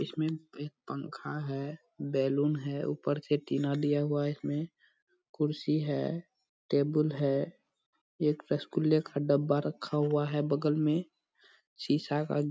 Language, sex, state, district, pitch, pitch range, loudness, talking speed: Hindi, male, Bihar, Purnia, 150 Hz, 145-155 Hz, -32 LUFS, 140 wpm